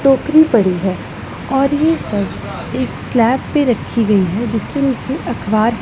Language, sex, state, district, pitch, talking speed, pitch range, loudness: Hindi, female, Punjab, Pathankot, 240 Hz, 155 wpm, 215-275 Hz, -16 LUFS